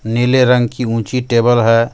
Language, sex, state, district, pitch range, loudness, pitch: Hindi, male, Jharkhand, Deoghar, 115-125 Hz, -14 LUFS, 120 Hz